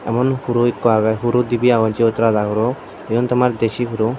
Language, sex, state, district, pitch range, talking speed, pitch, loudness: Chakma, male, Tripura, Dhalai, 110-120 Hz, 200 wpm, 120 Hz, -17 LUFS